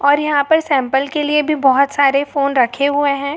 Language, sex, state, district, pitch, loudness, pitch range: Hindi, female, Jharkhand, Jamtara, 280 Hz, -15 LUFS, 275-295 Hz